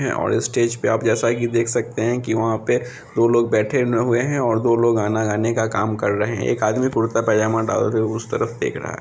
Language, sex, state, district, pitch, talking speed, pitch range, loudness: Hindi, female, Bihar, Samastipur, 115 Hz, 265 wpm, 110-120 Hz, -20 LUFS